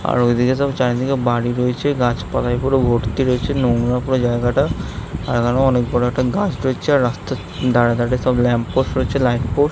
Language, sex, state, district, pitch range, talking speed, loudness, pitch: Bengali, male, West Bengal, Jhargram, 120-130 Hz, 190 wpm, -18 LUFS, 125 Hz